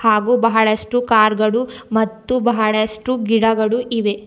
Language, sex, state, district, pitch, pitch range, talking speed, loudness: Kannada, female, Karnataka, Bidar, 225 Hz, 215-240 Hz, 110 wpm, -17 LUFS